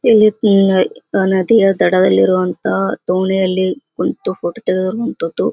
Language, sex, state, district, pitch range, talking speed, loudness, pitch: Kannada, female, Karnataka, Gulbarga, 165-195 Hz, 85 wpm, -15 LUFS, 185 Hz